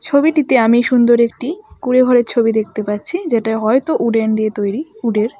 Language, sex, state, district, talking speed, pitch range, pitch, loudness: Bengali, female, West Bengal, Alipurduar, 175 wpm, 220-270 Hz, 235 Hz, -15 LUFS